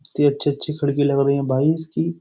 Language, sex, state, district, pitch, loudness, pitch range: Hindi, male, Uttar Pradesh, Jyotiba Phule Nagar, 145 Hz, -20 LUFS, 140-155 Hz